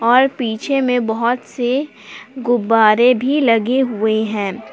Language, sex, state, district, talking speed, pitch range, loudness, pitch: Hindi, female, Jharkhand, Palamu, 125 wpm, 220-255 Hz, -16 LUFS, 240 Hz